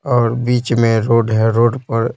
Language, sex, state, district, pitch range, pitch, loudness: Hindi, male, Bihar, Patna, 115-120 Hz, 115 Hz, -15 LUFS